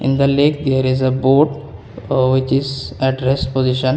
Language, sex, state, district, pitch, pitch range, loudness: English, male, Assam, Kamrup Metropolitan, 130 Hz, 130-135 Hz, -16 LUFS